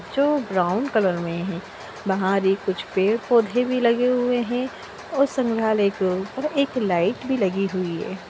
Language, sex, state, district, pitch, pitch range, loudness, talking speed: Hindi, female, Bihar, Vaishali, 215 Hz, 190-250 Hz, -22 LUFS, 165 wpm